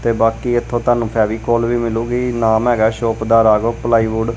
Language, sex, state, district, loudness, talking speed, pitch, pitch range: Punjabi, male, Punjab, Kapurthala, -16 LUFS, 205 wpm, 115 Hz, 110-120 Hz